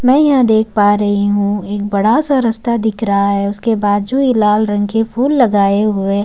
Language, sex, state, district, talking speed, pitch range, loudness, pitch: Hindi, male, Uttarakhand, Tehri Garhwal, 200 wpm, 205-235 Hz, -14 LUFS, 210 Hz